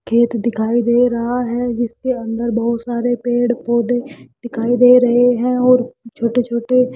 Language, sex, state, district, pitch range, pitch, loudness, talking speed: Hindi, female, Rajasthan, Jaipur, 235-245 Hz, 240 Hz, -16 LUFS, 165 wpm